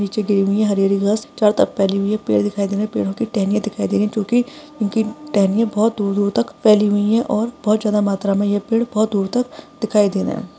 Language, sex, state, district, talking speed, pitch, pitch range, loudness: Hindi, female, Maharashtra, Pune, 260 wpm, 210 Hz, 200-225 Hz, -18 LUFS